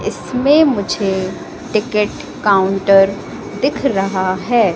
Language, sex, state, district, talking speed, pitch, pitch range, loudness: Hindi, female, Madhya Pradesh, Katni, 90 wpm, 200 Hz, 195-230 Hz, -15 LUFS